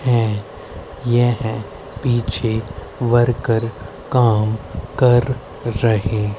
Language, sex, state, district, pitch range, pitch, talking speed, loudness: Hindi, female, Haryana, Rohtak, 105-120 Hz, 115 Hz, 65 wpm, -19 LUFS